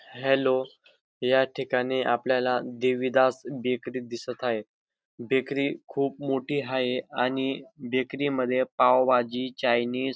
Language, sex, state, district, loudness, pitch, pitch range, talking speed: Marathi, male, Maharashtra, Dhule, -26 LUFS, 130 Hz, 125-135 Hz, 105 wpm